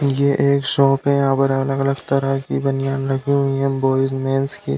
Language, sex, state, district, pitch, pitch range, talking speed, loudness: Hindi, male, Uttar Pradesh, Deoria, 135 Hz, 135-140 Hz, 200 wpm, -18 LUFS